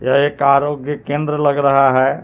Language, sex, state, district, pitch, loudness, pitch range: Hindi, male, Jharkhand, Palamu, 140 Hz, -15 LUFS, 140-145 Hz